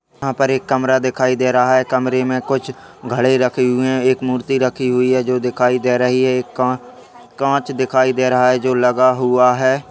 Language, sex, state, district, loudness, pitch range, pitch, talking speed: Hindi, male, West Bengal, Dakshin Dinajpur, -16 LUFS, 125-130 Hz, 130 Hz, 220 wpm